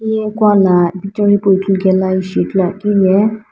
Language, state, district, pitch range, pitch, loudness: Sumi, Nagaland, Dimapur, 190-210 Hz, 195 Hz, -13 LUFS